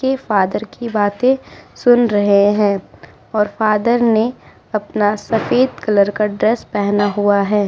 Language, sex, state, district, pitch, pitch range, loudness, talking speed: Hindi, female, Uttar Pradesh, Muzaffarnagar, 210 Hz, 205-235 Hz, -16 LUFS, 140 wpm